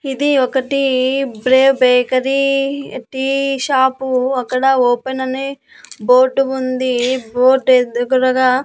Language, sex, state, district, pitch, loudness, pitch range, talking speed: Telugu, female, Andhra Pradesh, Annamaya, 260 Hz, -15 LUFS, 255-270 Hz, 105 wpm